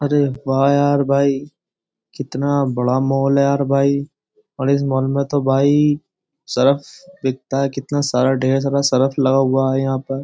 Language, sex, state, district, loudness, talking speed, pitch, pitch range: Hindi, male, Uttar Pradesh, Jyotiba Phule Nagar, -18 LUFS, 170 wpm, 140 Hz, 135-140 Hz